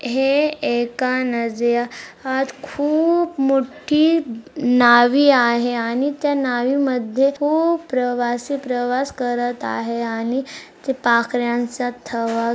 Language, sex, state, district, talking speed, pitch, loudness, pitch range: Marathi, female, Maharashtra, Chandrapur, 85 wpm, 255 Hz, -19 LUFS, 240-280 Hz